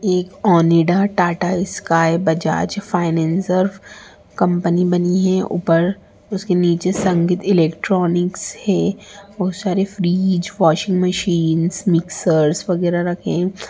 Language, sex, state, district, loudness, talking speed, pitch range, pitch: Hindi, female, Bihar, Samastipur, -17 LUFS, 100 wpm, 170-190 Hz, 180 Hz